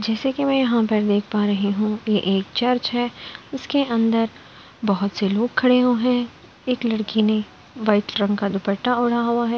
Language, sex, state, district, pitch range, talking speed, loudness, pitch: Hindi, female, Uttar Pradesh, Budaun, 205-245 Hz, 200 wpm, -21 LUFS, 225 Hz